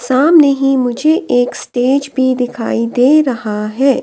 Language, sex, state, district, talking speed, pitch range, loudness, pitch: Hindi, female, Delhi, New Delhi, 150 wpm, 245-275 Hz, -13 LUFS, 260 Hz